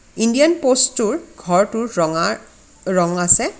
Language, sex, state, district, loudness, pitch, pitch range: Assamese, female, Assam, Kamrup Metropolitan, -17 LUFS, 215 Hz, 175-245 Hz